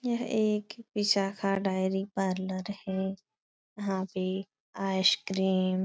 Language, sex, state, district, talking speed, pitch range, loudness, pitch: Hindi, female, Bihar, Supaul, 110 wpm, 190-205 Hz, -30 LUFS, 195 Hz